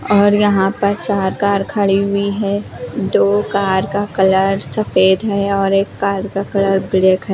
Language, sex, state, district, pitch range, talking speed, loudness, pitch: Hindi, female, Himachal Pradesh, Shimla, 195-205 Hz, 170 wpm, -16 LUFS, 200 Hz